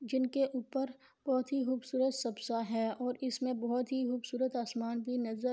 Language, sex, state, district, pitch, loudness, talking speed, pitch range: Urdu, female, Andhra Pradesh, Anantapur, 255 Hz, -35 LUFS, 150 wpm, 240-260 Hz